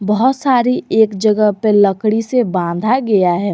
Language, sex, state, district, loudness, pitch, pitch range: Hindi, female, Jharkhand, Garhwa, -14 LUFS, 215 Hz, 200-245 Hz